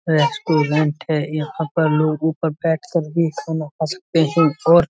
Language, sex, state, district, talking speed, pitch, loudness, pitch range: Hindi, male, Uttar Pradesh, Budaun, 170 wpm, 160 Hz, -19 LUFS, 155-165 Hz